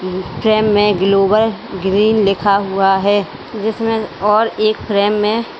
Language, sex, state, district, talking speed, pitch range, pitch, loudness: Hindi, female, Uttar Pradesh, Lalitpur, 130 wpm, 195-215 Hz, 210 Hz, -15 LUFS